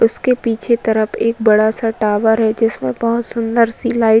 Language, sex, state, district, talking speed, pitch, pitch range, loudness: Hindi, female, Uttar Pradesh, Varanasi, 200 wpm, 225 Hz, 220-230 Hz, -15 LUFS